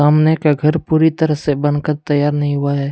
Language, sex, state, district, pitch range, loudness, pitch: Hindi, male, Jharkhand, Deoghar, 145-155 Hz, -16 LUFS, 150 Hz